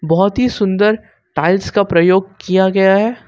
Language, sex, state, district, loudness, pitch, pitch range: Hindi, male, Jharkhand, Ranchi, -14 LUFS, 195 Hz, 185-210 Hz